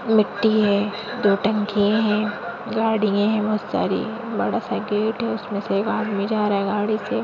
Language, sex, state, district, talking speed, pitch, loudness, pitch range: Hindi, female, Maharashtra, Nagpur, 175 wpm, 215 Hz, -22 LUFS, 205-220 Hz